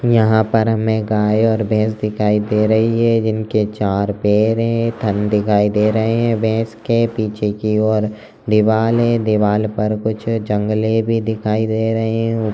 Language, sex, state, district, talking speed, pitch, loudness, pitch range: Hindi, male, Chhattisgarh, Raigarh, 165 wpm, 110 Hz, -17 LUFS, 105-115 Hz